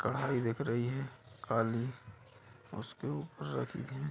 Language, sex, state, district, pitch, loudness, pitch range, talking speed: Hindi, male, Bihar, Purnia, 125 Hz, -37 LUFS, 115-135 Hz, 130 wpm